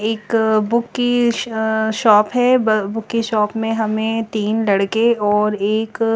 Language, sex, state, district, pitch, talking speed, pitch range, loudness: Hindi, female, Chandigarh, Chandigarh, 220 Hz, 145 wpm, 215-230 Hz, -17 LUFS